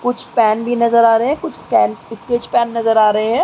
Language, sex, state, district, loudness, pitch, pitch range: Hindi, female, Uttar Pradesh, Muzaffarnagar, -15 LUFS, 235 Hz, 225-240 Hz